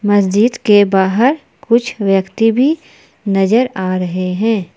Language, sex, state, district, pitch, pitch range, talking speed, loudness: Hindi, female, Jharkhand, Palamu, 205 Hz, 190-235 Hz, 125 wpm, -14 LUFS